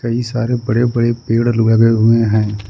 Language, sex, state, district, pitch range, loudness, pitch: Hindi, male, Jharkhand, Ranchi, 115-120 Hz, -14 LUFS, 115 Hz